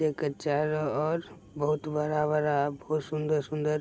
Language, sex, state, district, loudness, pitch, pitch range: Maithili, male, Bihar, Begusarai, -29 LUFS, 150 Hz, 150-155 Hz